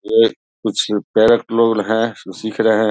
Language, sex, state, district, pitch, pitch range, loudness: Hindi, male, Bihar, Saharsa, 110 Hz, 110-115 Hz, -17 LUFS